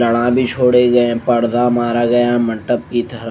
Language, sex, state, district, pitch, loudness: Hindi, male, Maharashtra, Mumbai Suburban, 120 Hz, -15 LUFS